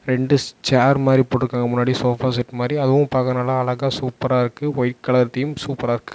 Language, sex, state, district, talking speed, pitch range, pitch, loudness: Tamil, male, Tamil Nadu, Namakkal, 185 wpm, 125-135 Hz, 130 Hz, -19 LUFS